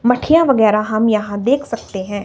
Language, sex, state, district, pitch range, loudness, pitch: Hindi, female, Himachal Pradesh, Shimla, 210-255 Hz, -15 LUFS, 220 Hz